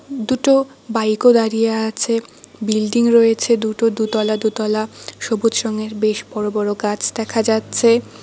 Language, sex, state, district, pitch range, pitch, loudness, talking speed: Bengali, female, West Bengal, Cooch Behar, 215-230 Hz, 225 Hz, -17 LUFS, 130 wpm